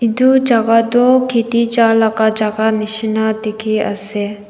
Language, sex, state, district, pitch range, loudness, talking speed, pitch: Nagamese, female, Nagaland, Dimapur, 215-235 Hz, -14 LUFS, 105 wpm, 220 Hz